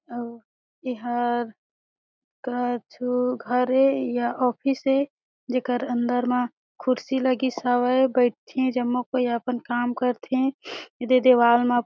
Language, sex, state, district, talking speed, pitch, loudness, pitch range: Chhattisgarhi, female, Chhattisgarh, Sarguja, 120 wpm, 250 Hz, -24 LUFS, 245-255 Hz